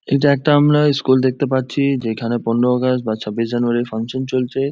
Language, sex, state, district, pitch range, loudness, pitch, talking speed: Bengali, male, West Bengal, Jhargram, 120-140 Hz, -17 LUFS, 130 Hz, 180 wpm